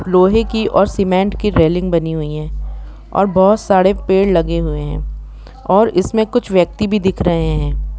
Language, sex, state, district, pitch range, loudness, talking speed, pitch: Hindi, female, Jharkhand, Jamtara, 160-200 Hz, -15 LUFS, 170 wpm, 185 Hz